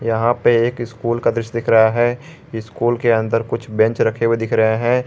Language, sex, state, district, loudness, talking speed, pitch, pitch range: Hindi, male, Jharkhand, Garhwa, -17 LUFS, 225 wpm, 115 Hz, 115-120 Hz